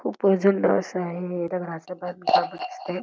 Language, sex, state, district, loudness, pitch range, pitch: Marathi, female, Karnataka, Belgaum, -24 LUFS, 180-195 Hz, 180 Hz